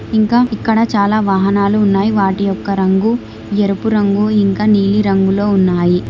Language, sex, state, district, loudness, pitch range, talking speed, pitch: Telugu, female, Telangana, Hyderabad, -14 LUFS, 195-215 Hz, 130 wpm, 200 Hz